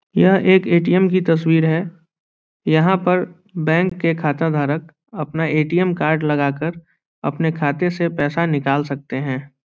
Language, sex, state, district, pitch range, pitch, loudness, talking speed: Hindi, male, Bihar, Saran, 150-180 Hz, 160 Hz, -18 LUFS, 150 wpm